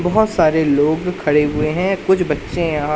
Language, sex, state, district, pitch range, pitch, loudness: Hindi, male, Madhya Pradesh, Katni, 150-180 Hz, 160 Hz, -17 LUFS